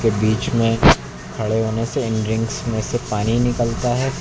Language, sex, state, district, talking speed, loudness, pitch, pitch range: Hindi, male, Uttar Pradesh, Lucknow, 170 wpm, -19 LUFS, 115 Hz, 110-120 Hz